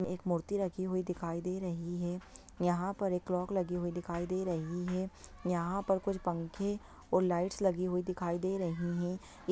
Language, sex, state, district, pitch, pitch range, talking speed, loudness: Hindi, female, Bihar, Jahanabad, 180 Hz, 175-185 Hz, 195 wpm, -35 LUFS